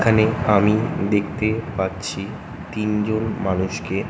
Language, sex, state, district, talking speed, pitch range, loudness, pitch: Bengali, male, West Bengal, North 24 Parganas, 100 wpm, 95-110 Hz, -21 LUFS, 105 Hz